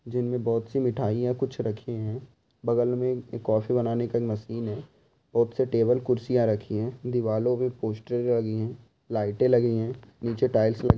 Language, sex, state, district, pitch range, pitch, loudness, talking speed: Hindi, male, Bihar, Bhagalpur, 110-125 Hz, 120 Hz, -27 LUFS, 175 wpm